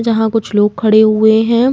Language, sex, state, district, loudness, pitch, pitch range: Hindi, female, Uttar Pradesh, Jalaun, -12 LUFS, 220 Hz, 215-230 Hz